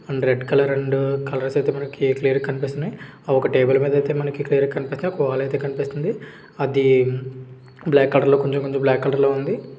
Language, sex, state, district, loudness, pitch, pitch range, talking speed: Telugu, male, Andhra Pradesh, Krishna, -20 LUFS, 140 Hz, 135-140 Hz, 180 wpm